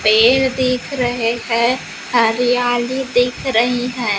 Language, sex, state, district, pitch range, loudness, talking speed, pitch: Hindi, female, Maharashtra, Gondia, 235-250 Hz, -16 LUFS, 115 wpm, 245 Hz